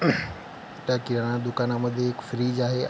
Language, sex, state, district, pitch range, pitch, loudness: Marathi, male, Maharashtra, Pune, 120-125 Hz, 120 Hz, -27 LUFS